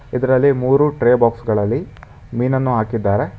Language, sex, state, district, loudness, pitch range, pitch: Kannada, male, Karnataka, Bangalore, -17 LUFS, 115-130 Hz, 125 Hz